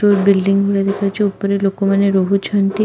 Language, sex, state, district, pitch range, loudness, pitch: Odia, female, Odisha, Khordha, 195-200 Hz, -16 LUFS, 200 Hz